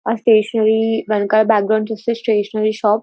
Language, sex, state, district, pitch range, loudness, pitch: Telugu, female, Andhra Pradesh, Visakhapatnam, 215-225 Hz, -16 LUFS, 220 Hz